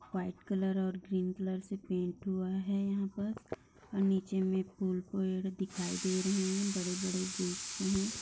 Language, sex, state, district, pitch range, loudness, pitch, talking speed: Hindi, female, Bihar, Bhagalpur, 185-195 Hz, -35 LUFS, 190 Hz, 170 wpm